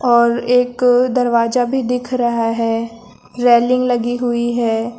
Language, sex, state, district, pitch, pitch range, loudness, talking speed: Hindi, female, Uttar Pradesh, Lucknow, 240 Hz, 235-250 Hz, -16 LUFS, 130 wpm